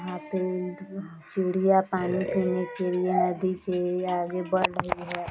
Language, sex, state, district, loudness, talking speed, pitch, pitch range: Hindi, female, Bihar, East Champaran, -27 LUFS, 145 wpm, 185 Hz, 180-185 Hz